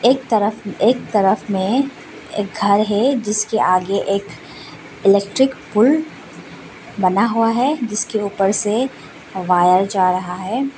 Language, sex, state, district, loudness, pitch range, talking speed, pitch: Hindi, female, Arunachal Pradesh, Lower Dibang Valley, -17 LUFS, 195-240 Hz, 130 wpm, 210 Hz